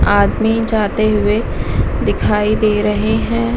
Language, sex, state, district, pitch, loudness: Hindi, female, Bihar, Vaishali, 160 Hz, -15 LUFS